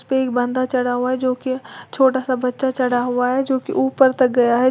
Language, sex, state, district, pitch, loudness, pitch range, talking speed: Hindi, female, Uttar Pradesh, Lalitpur, 255 Hz, -19 LUFS, 250-265 Hz, 215 wpm